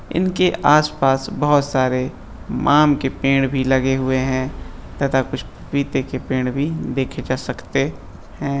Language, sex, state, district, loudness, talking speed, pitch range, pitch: Hindi, male, Bihar, East Champaran, -19 LUFS, 145 wpm, 130-145 Hz, 135 Hz